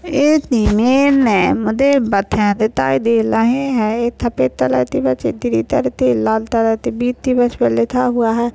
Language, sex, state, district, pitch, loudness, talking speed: Hindi, female, Chhattisgarh, Bastar, 225 Hz, -15 LUFS, 195 wpm